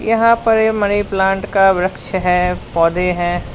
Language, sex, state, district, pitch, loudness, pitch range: Hindi, male, Uttar Pradesh, Lalitpur, 190 Hz, -15 LUFS, 180-210 Hz